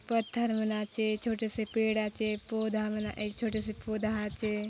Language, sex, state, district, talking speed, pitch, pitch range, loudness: Halbi, female, Chhattisgarh, Bastar, 165 wpm, 215 Hz, 215-220 Hz, -32 LUFS